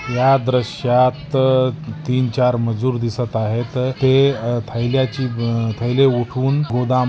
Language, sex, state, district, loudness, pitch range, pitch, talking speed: Marathi, male, Maharashtra, Nagpur, -18 LUFS, 120-130 Hz, 125 Hz, 120 wpm